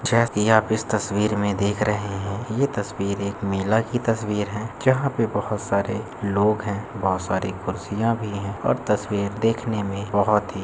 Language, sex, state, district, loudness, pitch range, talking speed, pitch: Hindi, male, Andhra Pradesh, Krishna, -23 LUFS, 100-110 Hz, 180 wpm, 105 Hz